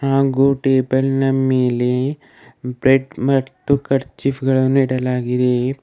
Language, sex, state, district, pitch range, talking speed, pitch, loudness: Kannada, male, Karnataka, Bidar, 125-135 Hz, 95 wpm, 135 Hz, -17 LUFS